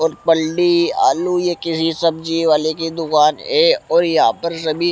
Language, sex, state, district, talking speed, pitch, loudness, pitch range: Hindi, male, Haryana, Rohtak, 170 wpm, 165 Hz, -16 LUFS, 160-175 Hz